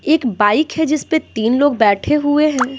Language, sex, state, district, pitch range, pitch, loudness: Hindi, female, Bihar, Patna, 240-305 Hz, 285 Hz, -15 LUFS